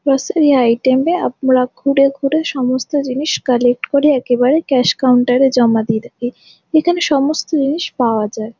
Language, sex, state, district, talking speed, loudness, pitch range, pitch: Bengali, female, West Bengal, Jhargram, 160 wpm, -15 LUFS, 245-290 Hz, 265 Hz